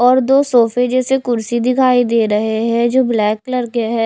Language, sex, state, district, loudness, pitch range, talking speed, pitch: Hindi, female, Odisha, Nuapada, -15 LUFS, 230-255 Hz, 205 wpm, 245 Hz